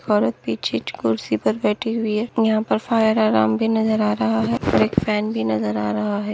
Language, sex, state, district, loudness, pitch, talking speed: Hindi, female, Maharashtra, Solapur, -20 LUFS, 210 Hz, 225 wpm